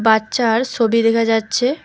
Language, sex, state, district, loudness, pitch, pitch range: Bengali, female, West Bengal, Alipurduar, -16 LUFS, 230 Hz, 225-245 Hz